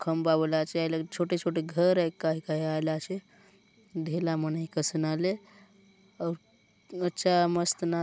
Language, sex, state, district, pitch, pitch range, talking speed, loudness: Halbi, male, Chhattisgarh, Bastar, 170 Hz, 160-185 Hz, 155 wpm, -29 LUFS